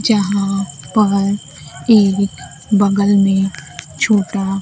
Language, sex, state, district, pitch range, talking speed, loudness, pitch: Hindi, female, Bihar, Kaimur, 155-200 Hz, 80 wpm, -15 LUFS, 195 Hz